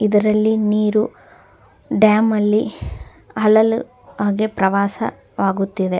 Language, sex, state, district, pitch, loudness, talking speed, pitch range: Kannada, female, Karnataka, Dakshina Kannada, 215 Hz, -18 LUFS, 80 wpm, 200-215 Hz